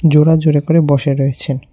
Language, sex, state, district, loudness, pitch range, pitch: Bengali, male, Tripura, West Tripura, -13 LUFS, 140-160 Hz, 145 Hz